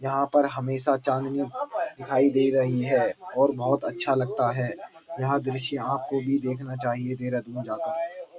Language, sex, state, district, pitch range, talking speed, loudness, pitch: Hindi, male, Uttarakhand, Uttarkashi, 130-140 Hz, 150 wpm, -26 LUFS, 135 Hz